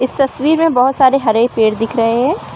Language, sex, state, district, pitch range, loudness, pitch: Hindi, female, Arunachal Pradesh, Lower Dibang Valley, 230-275 Hz, -13 LUFS, 255 Hz